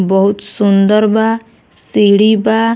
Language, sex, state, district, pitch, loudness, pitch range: Bhojpuri, female, Bihar, Muzaffarpur, 215 Hz, -12 LUFS, 200-220 Hz